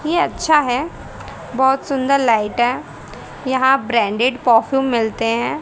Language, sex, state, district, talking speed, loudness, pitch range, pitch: Hindi, female, Haryana, Charkhi Dadri, 130 wpm, -17 LUFS, 235-275 Hz, 260 Hz